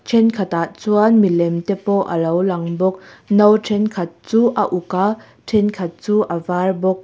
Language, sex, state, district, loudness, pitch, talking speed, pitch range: Mizo, female, Mizoram, Aizawl, -17 LUFS, 190 Hz, 170 wpm, 175-210 Hz